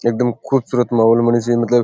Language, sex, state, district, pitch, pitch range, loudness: Rajasthani, male, Rajasthan, Churu, 120 Hz, 120-125 Hz, -16 LUFS